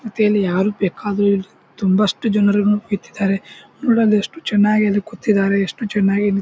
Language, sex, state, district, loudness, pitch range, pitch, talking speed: Kannada, male, Karnataka, Bijapur, -18 LUFS, 200-215 Hz, 205 Hz, 130 wpm